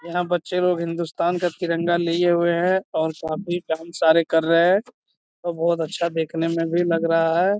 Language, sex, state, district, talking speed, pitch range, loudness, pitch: Hindi, male, Bihar, Jamui, 195 wpm, 165-175 Hz, -21 LUFS, 170 Hz